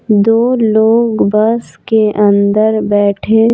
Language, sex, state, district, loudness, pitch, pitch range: Hindi, female, Bihar, Patna, -11 LUFS, 220 Hz, 210-225 Hz